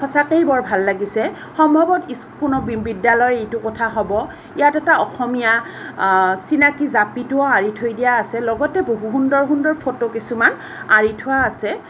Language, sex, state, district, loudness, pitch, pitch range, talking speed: Assamese, female, Assam, Kamrup Metropolitan, -17 LUFS, 245 Hz, 225-285 Hz, 150 wpm